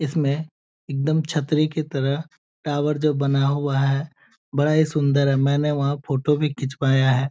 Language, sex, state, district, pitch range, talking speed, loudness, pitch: Hindi, male, Bihar, Jamui, 140-150 Hz, 165 wpm, -22 LUFS, 145 Hz